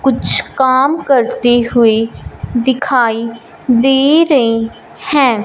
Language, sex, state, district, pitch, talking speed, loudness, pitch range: Hindi, female, Punjab, Fazilka, 250 Hz, 90 wpm, -12 LUFS, 230-270 Hz